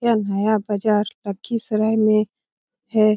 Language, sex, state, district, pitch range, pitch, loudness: Hindi, female, Bihar, Lakhisarai, 210-225 Hz, 215 Hz, -21 LUFS